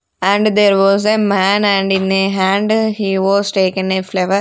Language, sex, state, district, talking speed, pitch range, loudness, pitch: English, female, Punjab, Fazilka, 190 wpm, 190-205 Hz, -14 LUFS, 195 Hz